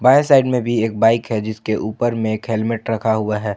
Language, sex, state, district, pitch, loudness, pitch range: Hindi, male, Jharkhand, Ranchi, 110 Hz, -18 LUFS, 110-120 Hz